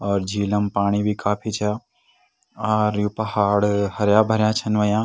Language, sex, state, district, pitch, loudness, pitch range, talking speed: Garhwali, male, Uttarakhand, Tehri Garhwal, 105 Hz, -21 LUFS, 100-110 Hz, 155 wpm